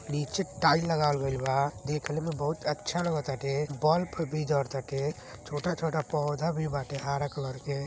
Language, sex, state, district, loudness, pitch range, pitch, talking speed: Hindi, male, Uttar Pradesh, Deoria, -30 LUFS, 140-155 Hz, 145 Hz, 165 wpm